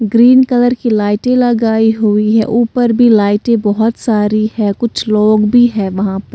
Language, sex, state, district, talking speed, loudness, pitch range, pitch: Hindi, female, Bihar, Katihar, 180 wpm, -11 LUFS, 210-235 Hz, 225 Hz